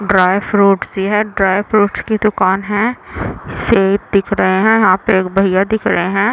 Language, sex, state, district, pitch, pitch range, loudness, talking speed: Hindi, female, Chhattisgarh, Raigarh, 200 Hz, 190-210 Hz, -14 LUFS, 190 wpm